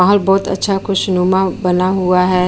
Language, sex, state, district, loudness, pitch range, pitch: Hindi, female, Uttar Pradesh, Jyotiba Phule Nagar, -14 LUFS, 180-195 Hz, 190 Hz